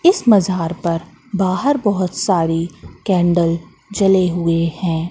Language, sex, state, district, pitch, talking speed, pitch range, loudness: Hindi, female, Madhya Pradesh, Katni, 180 Hz, 115 wpm, 170-195 Hz, -17 LUFS